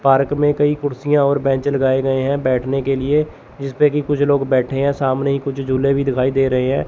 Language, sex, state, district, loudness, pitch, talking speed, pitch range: Hindi, male, Chandigarh, Chandigarh, -17 LUFS, 135 Hz, 225 wpm, 135-145 Hz